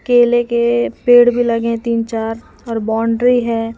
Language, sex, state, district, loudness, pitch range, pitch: Hindi, female, Madhya Pradesh, Umaria, -15 LUFS, 225-240 Hz, 230 Hz